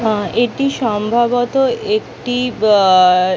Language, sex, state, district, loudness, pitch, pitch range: Bengali, female, West Bengal, Kolkata, -15 LUFS, 240 Hz, 210-255 Hz